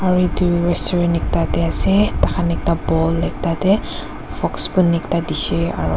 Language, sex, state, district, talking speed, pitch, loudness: Nagamese, female, Nagaland, Dimapur, 170 wpm, 165 Hz, -18 LUFS